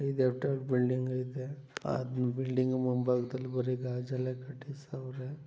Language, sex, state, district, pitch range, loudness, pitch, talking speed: Kannada, male, Karnataka, Mysore, 125-135 Hz, -33 LUFS, 130 Hz, 130 wpm